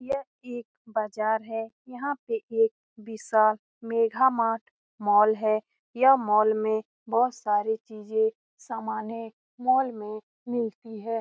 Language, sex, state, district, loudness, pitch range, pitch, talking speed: Hindi, female, Bihar, Lakhisarai, -26 LUFS, 215-245 Hz, 225 Hz, 135 wpm